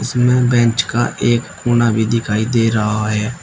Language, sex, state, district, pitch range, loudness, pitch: Hindi, male, Uttar Pradesh, Shamli, 110-120 Hz, -16 LUFS, 115 Hz